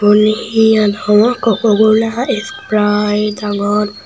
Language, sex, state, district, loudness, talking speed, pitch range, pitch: Chakma, male, Tripura, Unakoti, -13 LUFS, 105 wpm, 210-220 Hz, 210 Hz